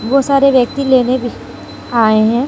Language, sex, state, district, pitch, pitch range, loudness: Hindi, female, Jharkhand, Deoghar, 255 Hz, 235-275 Hz, -13 LUFS